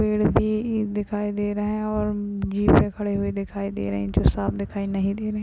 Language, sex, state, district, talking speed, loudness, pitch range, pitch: Hindi, female, Uttar Pradesh, Jyotiba Phule Nagar, 230 wpm, -24 LUFS, 195-210 Hz, 205 Hz